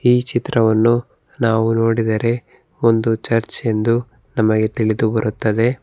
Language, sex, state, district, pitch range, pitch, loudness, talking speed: Kannada, male, Karnataka, Bangalore, 110-120 Hz, 115 Hz, -18 LUFS, 105 wpm